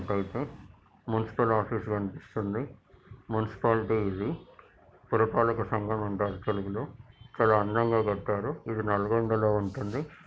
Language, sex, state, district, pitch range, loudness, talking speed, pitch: Telugu, male, Telangana, Nalgonda, 105-115 Hz, -29 LUFS, 100 wpm, 110 Hz